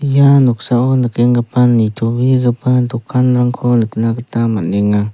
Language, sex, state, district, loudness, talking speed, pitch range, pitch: Garo, male, Meghalaya, South Garo Hills, -13 LUFS, 95 wpm, 115-125 Hz, 120 Hz